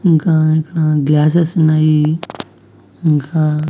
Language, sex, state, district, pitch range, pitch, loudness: Telugu, male, Andhra Pradesh, Annamaya, 150-165 Hz, 155 Hz, -14 LUFS